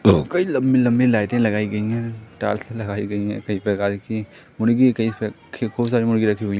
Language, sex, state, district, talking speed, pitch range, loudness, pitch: Hindi, male, Madhya Pradesh, Katni, 180 wpm, 105-120 Hz, -21 LUFS, 110 Hz